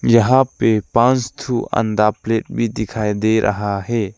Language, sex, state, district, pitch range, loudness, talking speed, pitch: Hindi, male, Arunachal Pradesh, Lower Dibang Valley, 105-120 Hz, -17 LUFS, 160 wpm, 115 Hz